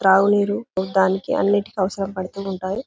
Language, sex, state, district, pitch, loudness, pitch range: Telugu, female, Telangana, Karimnagar, 195 Hz, -21 LUFS, 190-205 Hz